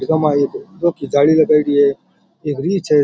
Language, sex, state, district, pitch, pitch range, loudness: Rajasthani, male, Rajasthan, Churu, 150 Hz, 145-170 Hz, -16 LUFS